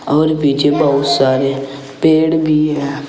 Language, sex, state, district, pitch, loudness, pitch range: Hindi, male, Uttar Pradesh, Saharanpur, 145 Hz, -14 LUFS, 140-155 Hz